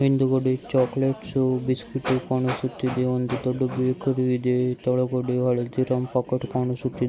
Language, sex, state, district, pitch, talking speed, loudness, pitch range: Kannada, male, Karnataka, Dharwad, 130 Hz, 100 wpm, -24 LUFS, 125-130 Hz